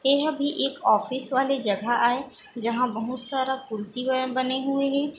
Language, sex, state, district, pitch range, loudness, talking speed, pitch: Chhattisgarhi, female, Chhattisgarh, Bilaspur, 240-275 Hz, -25 LUFS, 175 wpm, 260 Hz